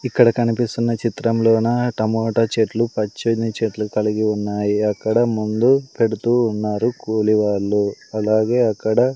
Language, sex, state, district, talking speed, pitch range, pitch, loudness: Telugu, male, Andhra Pradesh, Sri Satya Sai, 120 wpm, 105-115 Hz, 110 Hz, -19 LUFS